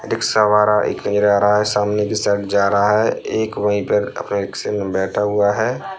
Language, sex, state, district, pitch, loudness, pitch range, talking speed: Bhojpuri, male, Bihar, Saran, 105 Hz, -17 LUFS, 100-105 Hz, 210 wpm